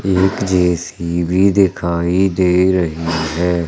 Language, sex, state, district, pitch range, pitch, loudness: Hindi, male, Madhya Pradesh, Umaria, 85-95 Hz, 90 Hz, -16 LUFS